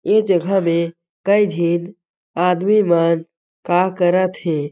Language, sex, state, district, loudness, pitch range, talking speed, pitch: Chhattisgarhi, male, Chhattisgarh, Jashpur, -17 LUFS, 170-185 Hz, 125 wpm, 175 Hz